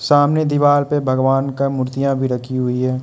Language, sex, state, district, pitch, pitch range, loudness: Hindi, male, Arunachal Pradesh, Lower Dibang Valley, 135 Hz, 130-145 Hz, -17 LUFS